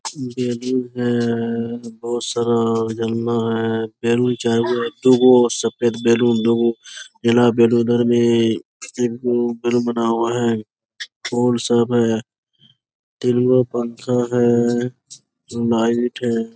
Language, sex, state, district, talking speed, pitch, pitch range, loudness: Hindi, male, Jharkhand, Sahebganj, 95 wpm, 120 Hz, 115-120 Hz, -18 LUFS